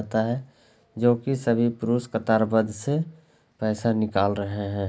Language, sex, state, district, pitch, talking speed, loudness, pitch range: Hindi, male, Bihar, Lakhisarai, 115 Hz, 150 wpm, -25 LUFS, 110-120 Hz